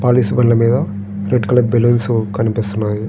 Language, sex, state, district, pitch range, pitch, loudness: Telugu, male, Andhra Pradesh, Srikakulam, 105-120 Hz, 115 Hz, -15 LUFS